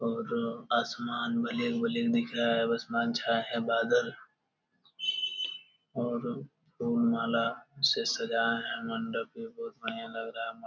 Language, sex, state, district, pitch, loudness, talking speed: Hindi, male, Bihar, Jamui, 120 Hz, -31 LUFS, 155 wpm